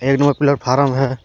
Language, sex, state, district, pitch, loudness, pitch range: Hindi, male, Jharkhand, Deoghar, 135 Hz, -16 LUFS, 130-140 Hz